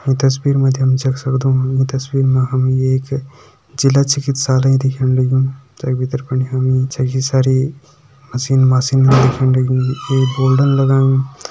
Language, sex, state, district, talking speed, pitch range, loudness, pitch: Hindi, male, Uttarakhand, Tehri Garhwal, 155 wpm, 130-135 Hz, -15 LUFS, 130 Hz